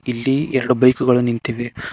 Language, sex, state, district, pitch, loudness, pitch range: Kannada, male, Karnataka, Koppal, 125 Hz, -18 LUFS, 120-130 Hz